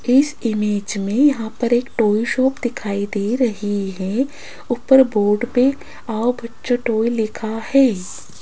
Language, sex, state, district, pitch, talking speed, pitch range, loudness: Hindi, female, Rajasthan, Jaipur, 230 Hz, 150 wpm, 210-255 Hz, -19 LUFS